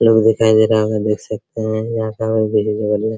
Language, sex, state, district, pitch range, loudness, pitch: Hindi, male, Bihar, Araria, 105-110 Hz, -17 LUFS, 110 Hz